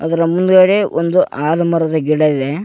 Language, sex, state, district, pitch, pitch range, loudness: Kannada, male, Karnataka, Koppal, 165 Hz, 155-180 Hz, -14 LUFS